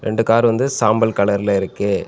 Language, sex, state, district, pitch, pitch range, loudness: Tamil, male, Tamil Nadu, Nilgiris, 110 Hz, 100-115 Hz, -17 LUFS